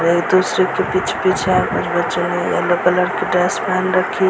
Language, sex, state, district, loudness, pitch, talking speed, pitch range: Hindi, female, Uttar Pradesh, Muzaffarnagar, -17 LUFS, 180 Hz, 125 wpm, 175-185 Hz